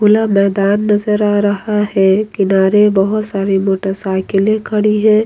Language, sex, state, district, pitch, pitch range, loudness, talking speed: Hindi, female, Bihar, Kishanganj, 205 Hz, 195-210 Hz, -13 LUFS, 135 wpm